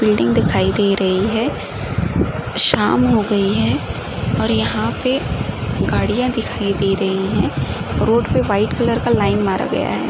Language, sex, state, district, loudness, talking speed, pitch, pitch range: Hindi, female, Uttar Pradesh, Gorakhpur, -17 LUFS, 155 wpm, 205 Hz, 195-230 Hz